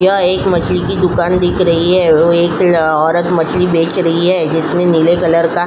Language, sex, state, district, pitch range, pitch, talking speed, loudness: Hindi, female, Uttar Pradesh, Jyotiba Phule Nagar, 165-180 Hz, 175 Hz, 210 wpm, -12 LUFS